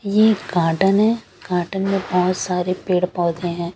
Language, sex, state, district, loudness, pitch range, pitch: Hindi, female, Chandigarh, Chandigarh, -19 LUFS, 175-195 Hz, 180 Hz